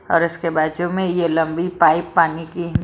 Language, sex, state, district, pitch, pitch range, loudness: Hindi, female, Maharashtra, Mumbai Suburban, 170 Hz, 160-175 Hz, -19 LUFS